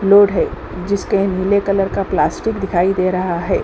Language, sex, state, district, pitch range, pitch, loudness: Hindi, female, Uttar Pradesh, Hamirpur, 185-200 Hz, 195 Hz, -17 LUFS